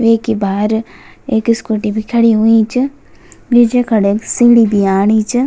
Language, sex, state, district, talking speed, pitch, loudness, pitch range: Garhwali, female, Uttarakhand, Tehri Garhwal, 165 wpm, 225 Hz, -12 LUFS, 215-235 Hz